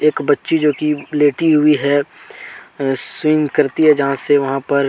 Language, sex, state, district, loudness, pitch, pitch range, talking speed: Hindi, male, Jharkhand, Deoghar, -15 LUFS, 145 Hz, 140-150 Hz, 170 wpm